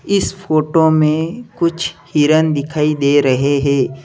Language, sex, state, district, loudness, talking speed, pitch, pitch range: Hindi, male, Uttar Pradesh, Lalitpur, -15 LUFS, 135 wpm, 150 Hz, 145-165 Hz